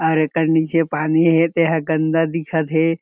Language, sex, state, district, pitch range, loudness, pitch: Chhattisgarhi, male, Chhattisgarh, Jashpur, 160-165 Hz, -18 LUFS, 160 Hz